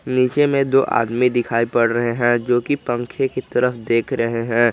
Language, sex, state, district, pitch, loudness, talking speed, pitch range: Hindi, male, Jharkhand, Garhwa, 120 Hz, -19 LUFS, 205 wpm, 115-130 Hz